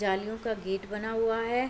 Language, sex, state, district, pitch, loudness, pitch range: Hindi, female, Bihar, Gopalganj, 220 Hz, -31 LUFS, 200-225 Hz